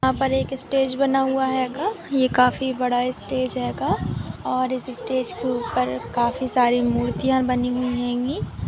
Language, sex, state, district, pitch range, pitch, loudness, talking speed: Hindi, female, Andhra Pradesh, Anantapur, 245-265 Hz, 255 Hz, -23 LUFS, 150 wpm